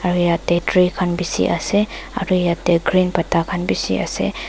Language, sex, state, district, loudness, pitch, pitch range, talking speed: Nagamese, female, Nagaland, Dimapur, -19 LUFS, 180 Hz, 175-185 Hz, 160 wpm